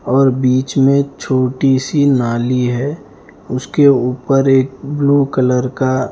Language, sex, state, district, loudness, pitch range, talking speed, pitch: Hindi, male, Punjab, Fazilka, -14 LUFS, 125-140 Hz, 120 wpm, 135 Hz